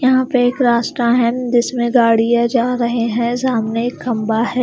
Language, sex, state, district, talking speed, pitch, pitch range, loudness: Hindi, female, Himachal Pradesh, Shimla, 180 wpm, 240 Hz, 235-250 Hz, -16 LUFS